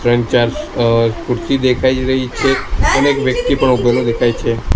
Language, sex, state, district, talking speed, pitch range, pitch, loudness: Gujarati, male, Gujarat, Gandhinagar, 175 wpm, 120-130 Hz, 125 Hz, -15 LUFS